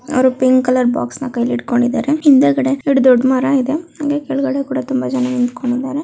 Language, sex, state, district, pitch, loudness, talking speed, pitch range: Kannada, female, Karnataka, Bellary, 260 Hz, -15 LUFS, 180 wpm, 250-280 Hz